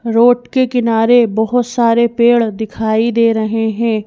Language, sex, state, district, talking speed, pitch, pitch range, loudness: Hindi, female, Madhya Pradesh, Bhopal, 145 wpm, 230 Hz, 220-240 Hz, -13 LUFS